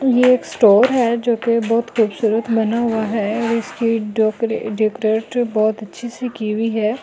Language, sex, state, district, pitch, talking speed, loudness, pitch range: Hindi, female, Delhi, New Delhi, 225 Hz, 180 wpm, -18 LUFS, 215-235 Hz